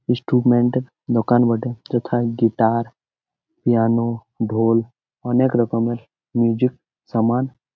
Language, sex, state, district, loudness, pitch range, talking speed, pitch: Bengali, male, West Bengal, Jalpaiguri, -20 LUFS, 115-125 Hz, 95 wpm, 120 Hz